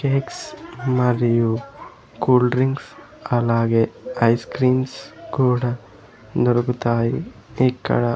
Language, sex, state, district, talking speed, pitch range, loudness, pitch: Telugu, male, Andhra Pradesh, Sri Satya Sai, 75 wpm, 115-130 Hz, -20 LUFS, 120 Hz